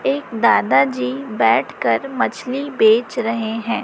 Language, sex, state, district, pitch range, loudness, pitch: Hindi, female, Chhattisgarh, Raipur, 220-245 Hz, -18 LUFS, 230 Hz